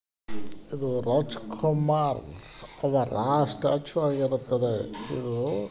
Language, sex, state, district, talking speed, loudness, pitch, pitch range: Kannada, male, Karnataka, Gulbarga, 65 wpm, -27 LUFS, 130 Hz, 110-145 Hz